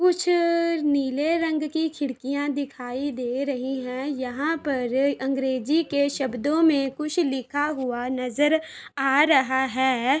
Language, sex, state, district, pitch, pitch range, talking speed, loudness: Hindi, female, Bihar, Darbhanga, 280 Hz, 260-305 Hz, 135 wpm, -24 LUFS